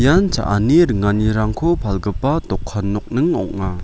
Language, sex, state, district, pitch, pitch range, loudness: Garo, male, Meghalaya, West Garo Hills, 105 Hz, 100-135 Hz, -18 LUFS